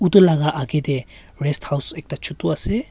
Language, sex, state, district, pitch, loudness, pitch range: Nagamese, male, Nagaland, Kohima, 145 Hz, -20 LUFS, 130-155 Hz